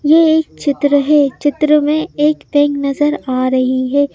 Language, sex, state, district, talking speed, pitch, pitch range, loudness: Hindi, female, Madhya Pradesh, Bhopal, 175 wpm, 290 Hz, 280-300 Hz, -14 LUFS